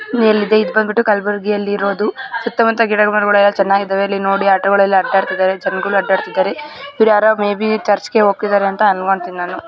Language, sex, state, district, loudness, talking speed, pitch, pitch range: Kannada, female, Karnataka, Gulbarga, -14 LUFS, 175 wpm, 205 Hz, 195-220 Hz